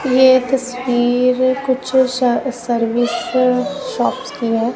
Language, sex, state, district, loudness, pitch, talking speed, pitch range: Hindi, female, Punjab, Kapurthala, -16 LUFS, 255 Hz, 100 wpm, 245-260 Hz